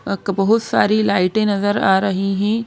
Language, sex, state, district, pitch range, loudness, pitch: Hindi, female, Madhya Pradesh, Bhopal, 195-215 Hz, -17 LUFS, 200 Hz